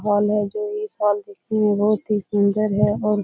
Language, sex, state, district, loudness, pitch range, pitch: Hindi, female, Bihar, Jahanabad, -21 LUFS, 205-215 Hz, 210 Hz